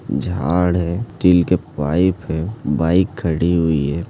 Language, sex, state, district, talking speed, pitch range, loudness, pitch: Hindi, male, Chhattisgarh, Bastar, 145 wpm, 80-90 Hz, -18 LUFS, 85 Hz